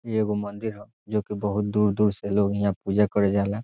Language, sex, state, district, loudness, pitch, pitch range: Bhojpuri, male, Bihar, Saran, -25 LUFS, 105 Hz, 100-105 Hz